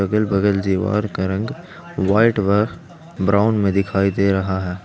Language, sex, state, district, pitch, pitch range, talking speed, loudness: Hindi, male, Jharkhand, Ranchi, 100 Hz, 95-110 Hz, 160 wpm, -19 LUFS